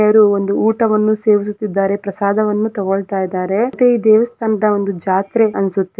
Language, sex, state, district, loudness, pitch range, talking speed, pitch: Kannada, female, Karnataka, Gulbarga, -15 LUFS, 195-220 Hz, 130 wpm, 210 Hz